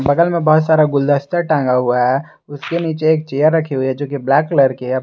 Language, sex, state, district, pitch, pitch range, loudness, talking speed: Hindi, male, Jharkhand, Garhwa, 145 Hz, 135-160 Hz, -15 LUFS, 250 wpm